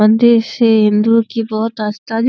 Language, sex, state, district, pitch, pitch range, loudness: Hindi, female, Uttar Pradesh, Deoria, 225 Hz, 215-230 Hz, -13 LUFS